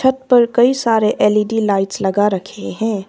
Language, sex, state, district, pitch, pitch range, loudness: Hindi, female, Arunachal Pradesh, Papum Pare, 220 Hz, 205-240 Hz, -15 LUFS